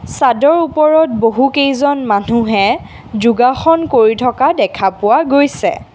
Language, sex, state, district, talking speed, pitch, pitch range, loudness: Assamese, female, Assam, Kamrup Metropolitan, 100 wpm, 260 Hz, 225-285 Hz, -12 LUFS